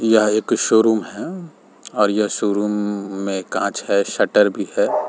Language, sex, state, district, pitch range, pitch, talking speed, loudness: Hindi, male, Chhattisgarh, Rajnandgaon, 100-110 Hz, 105 Hz, 155 wpm, -19 LUFS